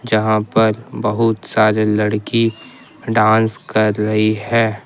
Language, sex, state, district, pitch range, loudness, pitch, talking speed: Hindi, male, Jharkhand, Ranchi, 105-115 Hz, -16 LUFS, 110 Hz, 110 wpm